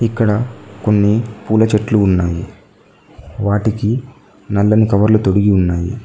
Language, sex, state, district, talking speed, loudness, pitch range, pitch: Telugu, male, Telangana, Mahabubabad, 100 wpm, -15 LUFS, 100-110 Hz, 105 Hz